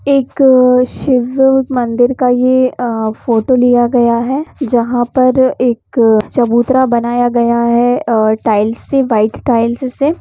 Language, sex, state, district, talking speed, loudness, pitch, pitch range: Hindi, female, Jharkhand, Jamtara, 135 wpm, -12 LUFS, 245 Hz, 235-260 Hz